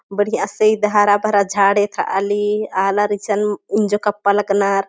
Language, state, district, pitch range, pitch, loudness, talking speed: Kurukh, Chhattisgarh, Jashpur, 200-210 Hz, 205 Hz, -17 LUFS, 145 wpm